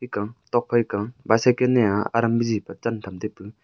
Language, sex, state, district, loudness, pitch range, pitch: Wancho, male, Arunachal Pradesh, Longding, -23 LUFS, 105-120 Hz, 115 Hz